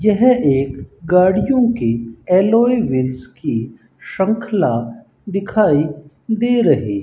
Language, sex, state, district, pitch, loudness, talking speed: Hindi, male, Rajasthan, Bikaner, 180 Hz, -16 LUFS, 100 wpm